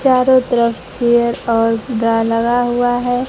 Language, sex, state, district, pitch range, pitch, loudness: Hindi, female, Bihar, Kaimur, 230-245 Hz, 235 Hz, -15 LUFS